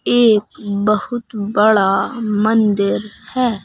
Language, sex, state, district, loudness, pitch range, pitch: Hindi, male, Madhya Pradesh, Bhopal, -16 LUFS, 205-225 Hz, 215 Hz